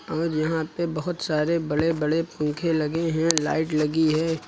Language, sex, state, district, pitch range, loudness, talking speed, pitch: Hindi, male, Uttar Pradesh, Lucknow, 155-165 Hz, -24 LUFS, 175 wpm, 160 Hz